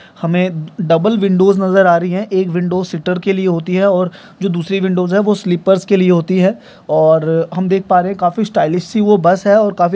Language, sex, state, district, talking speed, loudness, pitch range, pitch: Hindi, male, Andhra Pradesh, Guntur, 235 wpm, -14 LUFS, 175-195 Hz, 185 Hz